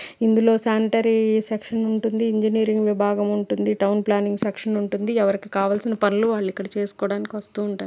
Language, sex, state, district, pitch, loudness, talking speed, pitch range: Telugu, male, Telangana, Karimnagar, 210 Hz, -22 LUFS, 145 wpm, 205-220 Hz